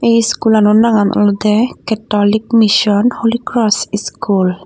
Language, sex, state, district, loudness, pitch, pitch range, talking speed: Chakma, female, Tripura, Dhalai, -13 LUFS, 215 Hz, 205-230 Hz, 115 wpm